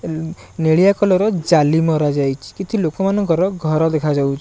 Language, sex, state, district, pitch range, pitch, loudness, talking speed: Odia, male, Odisha, Nuapada, 155-190 Hz, 160 Hz, -17 LUFS, 150 wpm